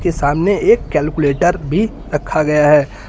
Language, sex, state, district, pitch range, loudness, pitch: Hindi, male, Uttar Pradesh, Lucknow, 145-175 Hz, -15 LUFS, 150 Hz